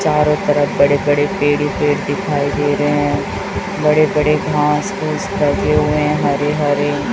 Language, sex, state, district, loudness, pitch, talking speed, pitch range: Hindi, female, Chhattisgarh, Raipur, -16 LUFS, 145 Hz, 175 wpm, 145-150 Hz